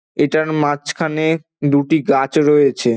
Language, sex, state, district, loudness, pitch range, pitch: Bengali, male, West Bengal, Dakshin Dinajpur, -16 LUFS, 140-160 Hz, 150 Hz